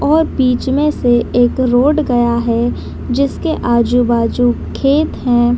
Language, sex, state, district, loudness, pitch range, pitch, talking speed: Hindi, female, Bihar, Madhepura, -14 LUFS, 240-275 Hz, 245 Hz, 130 wpm